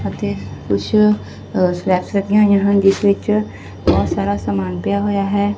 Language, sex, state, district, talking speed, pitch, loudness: Punjabi, female, Punjab, Fazilka, 160 wpm, 110 Hz, -17 LUFS